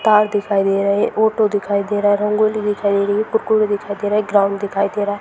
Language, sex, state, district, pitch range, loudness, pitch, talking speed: Hindi, female, Bihar, Sitamarhi, 200-215 Hz, -17 LUFS, 205 Hz, 285 wpm